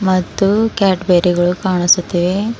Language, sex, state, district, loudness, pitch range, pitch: Kannada, female, Karnataka, Bidar, -14 LUFS, 180-195 Hz, 185 Hz